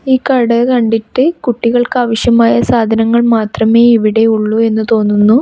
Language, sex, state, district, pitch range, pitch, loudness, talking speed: Malayalam, female, Kerala, Kasaragod, 220-245 Hz, 230 Hz, -11 LUFS, 120 wpm